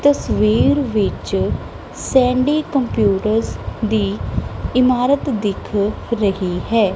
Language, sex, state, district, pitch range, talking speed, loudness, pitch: Punjabi, female, Punjab, Kapurthala, 205-260 Hz, 75 wpm, -18 LUFS, 225 Hz